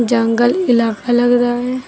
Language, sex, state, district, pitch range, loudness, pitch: Hindi, female, Uttar Pradesh, Lucknow, 235-245 Hz, -14 LUFS, 240 Hz